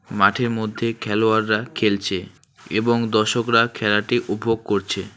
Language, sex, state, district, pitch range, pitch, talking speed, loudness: Bengali, male, West Bengal, Alipurduar, 105-115 Hz, 110 Hz, 105 wpm, -20 LUFS